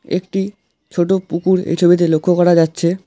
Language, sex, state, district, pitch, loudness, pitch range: Bengali, male, West Bengal, Alipurduar, 175 Hz, -15 LUFS, 170-185 Hz